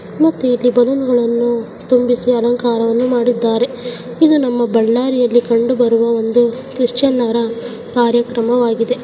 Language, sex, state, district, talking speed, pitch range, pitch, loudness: Kannada, female, Karnataka, Bellary, 95 wpm, 235-250 Hz, 240 Hz, -15 LUFS